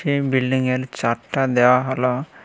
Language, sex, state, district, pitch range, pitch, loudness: Bengali, male, Tripura, West Tripura, 125-135 Hz, 130 Hz, -20 LUFS